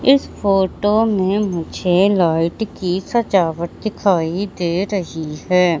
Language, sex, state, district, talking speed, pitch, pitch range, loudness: Hindi, male, Madhya Pradesh, Katni, 115 wpm, 190 Hz, 170-205 Hz, -18 LUFS